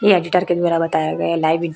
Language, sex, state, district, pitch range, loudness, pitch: Hindi, female, Maharashtra, Chandrapur, 160-180 Hz, -18 LUFS, 170 Hz